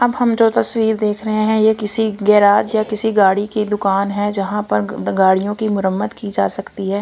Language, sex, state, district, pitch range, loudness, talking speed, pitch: Hindi, female, Punjab, Kapurthala, 200-220 Hz, -16 LUFS, 220 wpm, 210 Hz